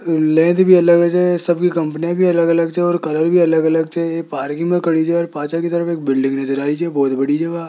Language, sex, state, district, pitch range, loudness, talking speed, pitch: Hindi, male, Rajasthan, Jaipur, 155-170 Hz, -16 LUFS, 240 wpm, 165 Hz